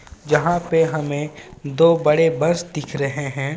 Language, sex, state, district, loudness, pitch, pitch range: Hindi, male, Jharkhand, Ranchi, -19 LUFS, 150 Hz, 145-165 Hz